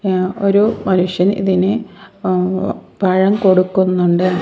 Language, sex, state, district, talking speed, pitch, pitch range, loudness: Malayalam, female, Kerala, Kasaragod, 95 wpm, 190 Hz, 185-195 Hz, -15 LUFS